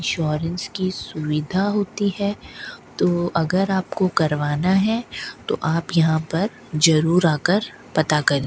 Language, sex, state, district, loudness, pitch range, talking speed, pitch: Hindi, female, Rajasthan, Bikaner, -21 LUFS, 155-190 Hz, 135 wpm, 170 Hz